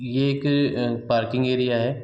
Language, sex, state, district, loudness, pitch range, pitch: Hindi, male, Bihar, East Champaran, -23 LUFS, 120-135 Hz, 125 Hz